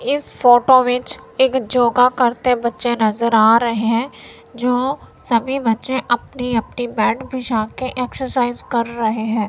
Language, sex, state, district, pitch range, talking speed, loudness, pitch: Hindi, female, Punjab, Kapurthala, 230-255 Hz, 145 wpm, -17 LUFS, 245 Hz